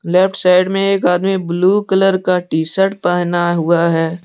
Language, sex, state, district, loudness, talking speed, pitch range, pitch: Hindi, male, Jharkhand, Deoghar, -14 LUFS, 185 wpm, 175-190 Hz, 180 Hz